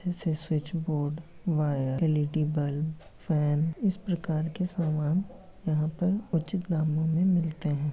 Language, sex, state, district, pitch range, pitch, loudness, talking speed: Hindi, male, Bihar, Lakhisarai, 155-175 Hz, 160 Hz, -29 LUFS, 135 wpm